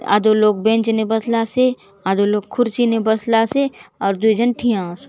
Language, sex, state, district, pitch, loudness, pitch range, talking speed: Halbi, female, Chhattisgarh, Bastar, 225 Hz, -17 LUFS, 210-235 Hz, 175 wpm